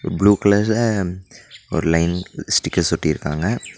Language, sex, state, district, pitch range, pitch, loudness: Tamil, male, Tamil Nadu, Nilgiris, 85-105 Hz, 90 Hz, -19 LUFS